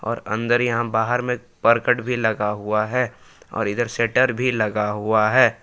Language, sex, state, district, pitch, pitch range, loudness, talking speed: Hindi, male, Jharkhand, Palamu, 115 Hz, 110-125 Hz, -21 LUFS, 180 wpm